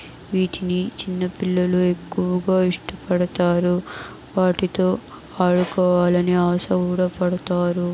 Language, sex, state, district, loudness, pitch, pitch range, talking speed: Telugu, male, Andhra Pradesh, Chittoor, -21 LUFS, 180 Hz, 180-185 Hz, 70 wpm